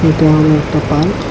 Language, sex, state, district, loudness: Bengali, male, Tripura, West Tripura, -12 LUFS